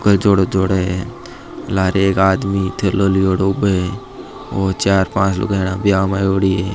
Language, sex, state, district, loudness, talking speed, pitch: Marwari, male, Rajasthan, Nagaur, -16 LUFS, 170 wpm, 95 Hz